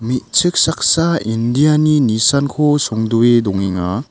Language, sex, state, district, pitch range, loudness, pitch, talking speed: Garo, male, Meghalaya, South Garo Hills, 110-150 Hz, -14 LUFS, 125 Hz, 85 wpm